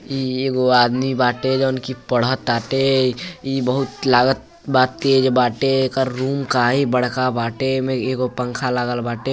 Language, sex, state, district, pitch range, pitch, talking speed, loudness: Bhojpuri, male, Uttar Pradesh, Gorakhpur, 125-135 Hz, 130 Hz, 150 wpm, -19 LUFS